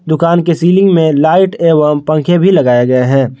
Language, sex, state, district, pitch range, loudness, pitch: Hindi, male, Jharkhand, Garhwa, 145-175 Hz, -10 LUFS, 160 Hz